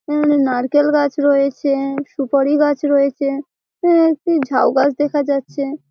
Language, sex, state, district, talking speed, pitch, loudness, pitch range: Bengali, female, West Bengal, Malda, 130 wpm, 285 Hz, -16 LUFS, 275-295 Hz